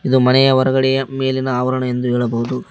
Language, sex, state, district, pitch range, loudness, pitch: Kannada, male, Karnataka, Koppal, 125-130 Hz, -16 LUFS, 130 Hz